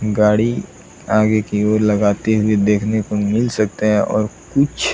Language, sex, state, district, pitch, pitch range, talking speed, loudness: Hindi, male, Bihar, Saran, 105 Hz, 105-110 Hz, 170 wpm, -17 LUFS